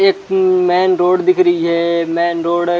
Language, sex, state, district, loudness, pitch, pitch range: Hindi, male, Chhattisgarh, Rajnandgaon, -14 LUFS, 180 Hz, 170-185 Hz